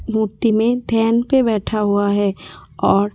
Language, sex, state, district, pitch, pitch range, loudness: Hindi, female, Delhi, New Delhi, 220 Hz, 205-230 Hz, -17 LUFS